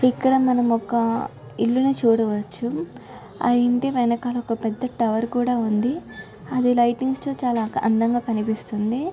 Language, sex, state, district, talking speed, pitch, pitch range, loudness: Telugu, female, Andhra Pradesh, Guntur, 110 wpm, 240 Hz, 225-255 Hz, -22 LUFS